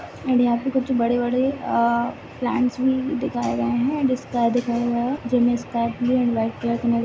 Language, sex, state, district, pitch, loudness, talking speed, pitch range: Hindi, female, Chhattisgarh, Sarguja, 245 Hz, -22 LUFS, 170 wpm, 235-255 Hz